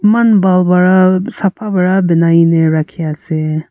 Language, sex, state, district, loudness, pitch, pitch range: Nagamese, female, Nagaland, Kohima, -12 LUFS, 180 Hz, 165-190 Hz